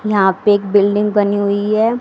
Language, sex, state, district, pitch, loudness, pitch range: Hindi, female, Haryana, Rohtak, 205 Hz, -14 LUFS, 200-210 Hz